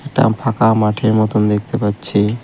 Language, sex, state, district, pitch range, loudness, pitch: Bengali, male, West Bengal, Cooch Behar, 105-115 Hz, -16 LUFS, 110 Hz